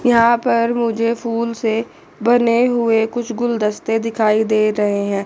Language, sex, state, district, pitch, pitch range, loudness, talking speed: Hindi, female, Chandigarh, Chandigarh, 230 Hz, 220-235 Hz, -17 LUFS, 150 wpm